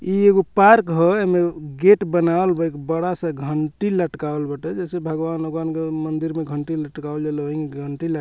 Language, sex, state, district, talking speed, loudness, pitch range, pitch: Bhojpuri, male, Bihar, Muzaffarpur, 205 wpm, -20 LUFS, 150-175 Hz, 160 Hz